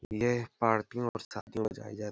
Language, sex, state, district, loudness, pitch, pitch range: Hindi, male, Uttar Pradesh, Hamirpur, -33 LUFS, 110 Hz, 105-120 Hz